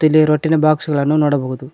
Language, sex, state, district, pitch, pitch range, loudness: Kannada, male, Karnataka, Koppal, 150 Hz, 145-155 Hz, -15 LUFS